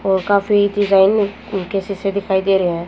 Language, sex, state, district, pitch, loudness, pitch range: Hindi, female, Haryana, Jhajjar, 195 Hz, -17 LUFS, 190-205 Hz